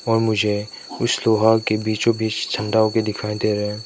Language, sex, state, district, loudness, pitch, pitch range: Hindi, male, Manipur, Imphal West, -20 LUFS, 110 Hz, 105-110 Hz